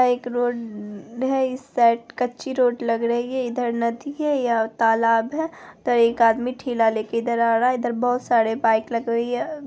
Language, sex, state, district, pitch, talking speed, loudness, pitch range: Hindi, female, Bihar, Araria, 240 Hz, 205 wpm, -22 LUFS, 230-250 Hz